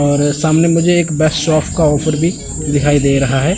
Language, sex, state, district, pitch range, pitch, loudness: Hindi, male, Chandigarh, Chandigarh, 145-165 Hz, 155 Hz, -13 LUFS